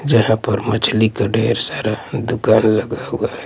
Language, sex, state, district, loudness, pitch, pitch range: Hindi, male, Punjab, Pathankot, -17 LUFS, 110 Hz, 110-120 Hz